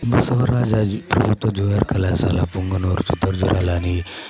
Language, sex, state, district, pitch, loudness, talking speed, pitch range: Telugu, male, Andhra Pradesh, Chittoor, 95 Hz, -20 LUFS, 85 wpm, 90-110 Hz